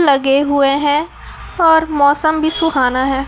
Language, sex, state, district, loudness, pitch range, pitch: Hindi, male, Chhattisgarh, Raipur, -14 LUFS, 275-315 Hz, 290 Hz